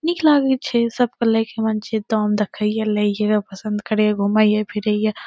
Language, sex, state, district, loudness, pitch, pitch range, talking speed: Maithili, female, Bihar, Saharsa, -19 LUFS, 215 Hz, 210-225 Hz, 195 wpm